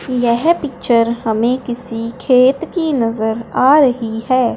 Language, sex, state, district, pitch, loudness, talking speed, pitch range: Hindi, male, Punjab, Fazilka, 245 Hz, -15 LUFS, 130 wpm, 230-265 Hz